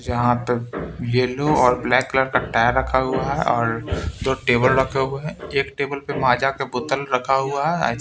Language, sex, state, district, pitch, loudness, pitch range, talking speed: Hindi, male, Bihar, Patna, 130 Hz, -20 LUFS, 125-135 Hz, 200 wpm